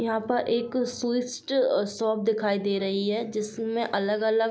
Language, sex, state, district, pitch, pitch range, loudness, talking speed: Hindi, female, Uttar Pradesh, Jyotiba Phule Nagar, 225 Hz, 210-240 Hz, -27 LUFS, 160 wpm